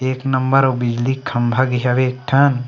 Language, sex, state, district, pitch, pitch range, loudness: Chhattisgarhi, male, Chhattisgarh, Sarguja, 130 Hz, 125-135 Hz, -17 LUFS